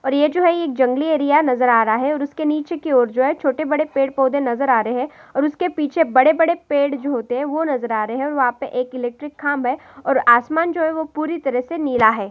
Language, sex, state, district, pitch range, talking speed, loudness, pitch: Maithili, female, Bihar, Supaul, 255-310 Hz, 270 wpm, -19 LUFS, 280 Hz